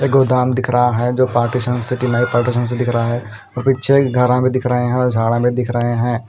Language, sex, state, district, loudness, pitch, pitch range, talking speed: Hindi, male, Punjab, Kapurthala, -16 LUFS, 125 Hz, 120-125 Hz, 265 wpm